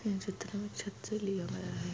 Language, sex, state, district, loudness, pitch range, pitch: Hindi, female, Chhattisgarh, Bastar, -39 LUFS, 195-210 Hz, 200 Hz